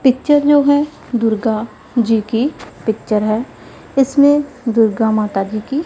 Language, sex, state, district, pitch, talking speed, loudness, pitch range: Hindi, female, Punjab, Pathankot, 235 Hz, 145 wpm, -16 LUFS, 220-280 Hz